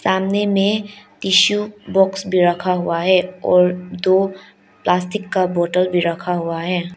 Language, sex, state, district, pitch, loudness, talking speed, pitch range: Hindi, female, Arunachal Pradesh, Lower Dibang Valley, 185 Hz, -18 LUFS, 145 wpm, 175-195 Hz